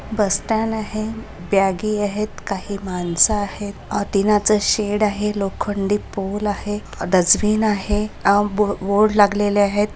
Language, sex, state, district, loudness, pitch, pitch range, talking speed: Marathi, female, Maharashtra, Chandrapur, -19 LUFS, 205 Hz, 200-210 Hz, 120 wpm